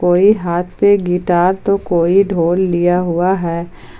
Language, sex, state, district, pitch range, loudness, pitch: Hindi, female, Jharkhand, Palamu, 175-190 Hz, -14 LUFS, 180 Hz